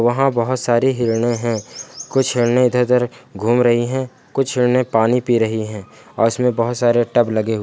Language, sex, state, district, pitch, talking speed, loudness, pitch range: Hindi, male, Bihar, Jamui, 120 Hz, 195 wpm, -17 LUFS, 115-125 Hz